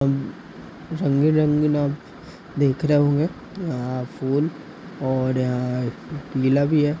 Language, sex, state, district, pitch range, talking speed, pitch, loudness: Hindi, male, Uttar Pradesh, Gorakhpur, 130-150 Hz, 110 wpm, 145 Hz, -22 LUFS